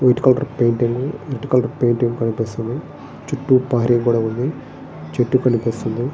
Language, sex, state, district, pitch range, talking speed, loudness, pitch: Telugu, male, Andhra Pradesh, Srikakulam, 120-130 Hz, 125 wpm, -19 LUFS, 125 Hz